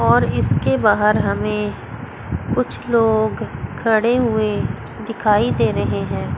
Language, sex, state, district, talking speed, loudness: Hindi, female, Chandigarh, Chandigarh, 115 wpm, -18 LUFS